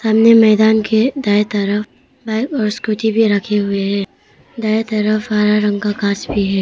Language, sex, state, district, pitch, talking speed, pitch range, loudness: Hindi, female, Arunachal Pradesh, Papum Pare, 215 Hz, 180 wpm, 205-220 Hz, -15 LUFS